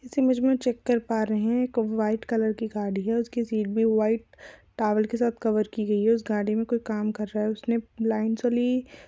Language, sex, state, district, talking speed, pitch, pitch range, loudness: Hindi, female, Chhattisgarh, Rajnandgaon, 210 wpm, 225 Hz, 215-235 Hz, -26 LUFS